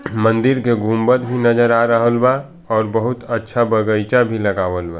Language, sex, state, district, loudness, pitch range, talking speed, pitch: Bhojpuri, male, Bihar, Saran, -16 LUFS, 110-125 Hz, 180 wpm, 115 Hz